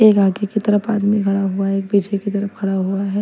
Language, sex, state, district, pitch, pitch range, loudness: Hindi, female, Punjab, Kapurthala, 200 Hz, 195-205 Hz, -18 LUFS